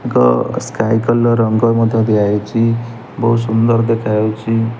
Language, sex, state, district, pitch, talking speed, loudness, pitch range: Odia, male, Odisha, Nuapada, 115 Hz, 100 wpm, -15 LUFS, 110-115 Hz